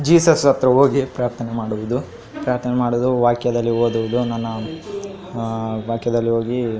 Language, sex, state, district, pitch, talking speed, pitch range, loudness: Kannada, male, Karnataka, Raichur, 120 Hz, 125 wpm, 115-130 Hz, -19 LUFS